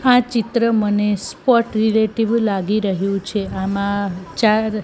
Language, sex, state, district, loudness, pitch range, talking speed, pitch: Gujarati, female, Gujarat, Gandhinagar, -18 LUFS, 200-230 Hz, 125 wpm, 215 Hz